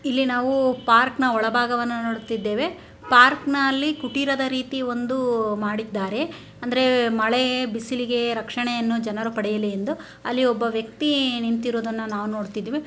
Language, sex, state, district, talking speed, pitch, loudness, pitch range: Kannada, female, Karnataka, Bellary, 120 wpm, 240 Hz, -22 LUFS, 225-255 Hz